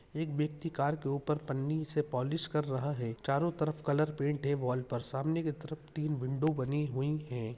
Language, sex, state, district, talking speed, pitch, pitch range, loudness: Hindi, male, Bihar, Jahanabad, 205 wpm, 150 Hz, 135-155 Hz, -34 LUFS